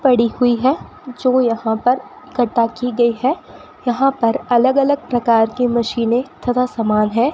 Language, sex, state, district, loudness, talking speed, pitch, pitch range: Hindi, female, Rajasthan, Bikaner, -17 LUFS, 165 wpm, 245 Hz, 230-255 Hz